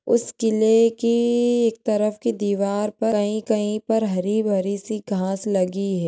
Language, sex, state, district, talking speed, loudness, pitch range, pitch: Hindi, female, Maharashtra, Sindhudurg, 150 wpm, -21 LUFS, 200-230 Hz, 215 Hz